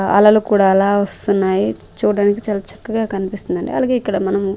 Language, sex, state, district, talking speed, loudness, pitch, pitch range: Telugu, female, Andhra Pradesh, Manyam, 145 wpm, -17 LUFS, 200 Hz, 195-210 Hz